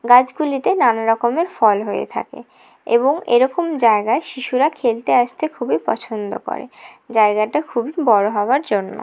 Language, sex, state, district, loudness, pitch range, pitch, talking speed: Bengali, female, West Bengal, Jalpaiguri, -18 LUFS, 220-280 Hz, 240 Hz, 140 wpm